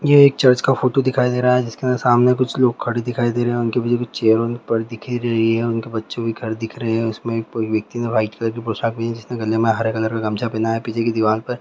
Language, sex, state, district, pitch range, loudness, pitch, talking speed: Hindi, male, Chhattisgarh, Bilaspur, 115-125 Hz, -19 LUFS, 115 Hz, 285 wpm